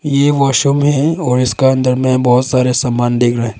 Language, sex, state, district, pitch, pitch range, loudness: Hindi, male, Arunachal Pradesh, Longding, 130 Hz, 125-140 Hz, -13 LUFS